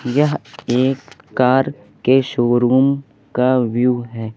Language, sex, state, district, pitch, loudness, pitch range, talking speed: Hindi, male, Uttar Pradesh, Lucknow, 125 Hz, -17 LUFS, 120-135 Hz, 110 wpm